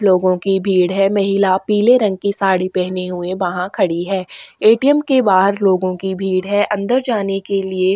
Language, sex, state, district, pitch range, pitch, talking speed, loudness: Hindi, female, Chhattisgarh, Kabirdham, 185-205 Hz, 195 Hz, 190 wpm, -16 LUFS